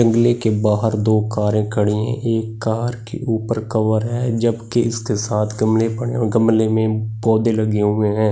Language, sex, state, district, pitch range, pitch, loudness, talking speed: Hindi, male, Delhi, New Delhi, 110-115 Hz, 110 Hz, -18 LUFS, 180 wpm